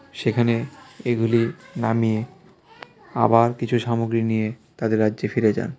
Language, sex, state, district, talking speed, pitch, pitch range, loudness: Bengali, male, Tripura, West Tripura, 125 wpm, 115 Hz, 110-120 Hz, -22 LUFS